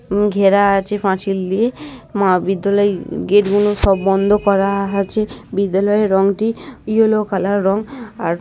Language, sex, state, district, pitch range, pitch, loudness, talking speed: Bengali, female, West Bengal, North 24 Parganas, 195-210 Hz, 200 Hz, -16 LUFS, 120 wpm